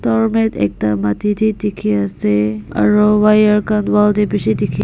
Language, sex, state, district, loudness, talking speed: Nagamese, female, Nagaland, Dimapur, -15 LUFS, 160 wpm